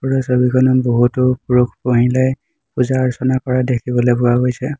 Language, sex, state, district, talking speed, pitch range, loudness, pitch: Assamese, male, Assam, Hailakandi, 135 wpm, 125-130 Hz, -16 LUFS, 125 Hz